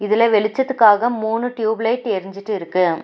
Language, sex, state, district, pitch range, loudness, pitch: Tamil, female, Tamil Nadu, Nilgiris, 205-230 Hz, -18 LUFS, 220 Hz